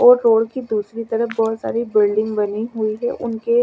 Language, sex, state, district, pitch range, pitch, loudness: Hindi, female, Chandigarh, Chandigarh, 215-235 Hz, 225 Hz, -19 LUFS